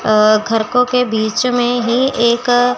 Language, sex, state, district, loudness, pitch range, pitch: Hindi, female, Chandigarh, Chandigarh, -14 LUFS, 220-250 Hz, 240 Hz